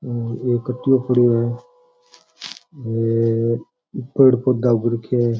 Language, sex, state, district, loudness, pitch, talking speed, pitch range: Rajasthani, male, Rajasthan, Churu, -19 LUFS, 120 Hz, 135 wpm, 115-130 Hz